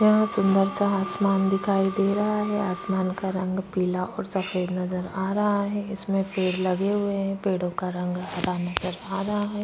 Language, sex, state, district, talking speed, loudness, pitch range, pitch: Hindi, female, Maharashtra, Chandrapur, 195 wpm, -26 LUFS, 185-200 Hz, 195 Hz